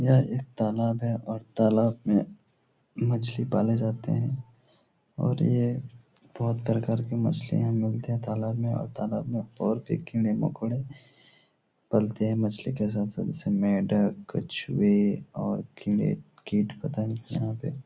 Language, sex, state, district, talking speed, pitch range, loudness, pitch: Hindi, male, Bihar, Supaul, 140 wpm, 110-125 Hz, -28 LUFS, 115 Hz